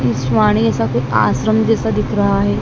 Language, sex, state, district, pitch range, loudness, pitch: Hindi, female, Madhya Pradesh, Dhar, 105-125 Hz, -15 LUFS, 115 Hz